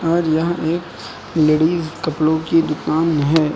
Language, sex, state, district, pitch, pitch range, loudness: Hindi, male, Uttar Pradesh, Lucknow, 160 Hz, 155-165 Hz, -18 LUFS